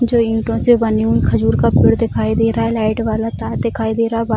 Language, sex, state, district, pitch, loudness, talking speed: Hindi, female, Bihar, Jamui, 215 Hz, -16 LUFS, 260 wpm